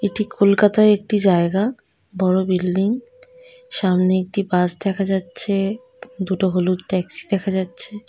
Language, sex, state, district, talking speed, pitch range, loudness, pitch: Bengali, female, West Bengal, North 24 Parganas, 125 wpm, 185-210 Hz, -19 LUFS, 195 Hz